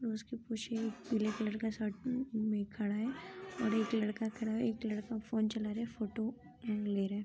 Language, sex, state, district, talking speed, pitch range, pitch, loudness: Hindi, female, Uttar Pradesh, Jyotiba Phule Nagar, 215 wpm, 215-230 Hz, 220 Hz, -38 LUFS